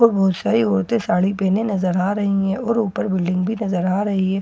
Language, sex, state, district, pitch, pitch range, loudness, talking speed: Hindi, female, Bihar, Katihar, 195 Hz, 190-220 Hz, -19 LUFS, 270 wpm